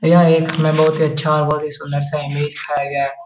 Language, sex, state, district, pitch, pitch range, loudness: Hindi, male, Bihar, Jahanabad, 150 Hz, 145-155 Hz, -17 LUFS